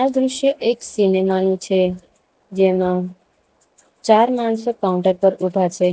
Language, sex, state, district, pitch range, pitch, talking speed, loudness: Gujarati, female, Gujarat, Valsad, 185-230 Hz, 190 Hz, 120 wpm, -18 LUFS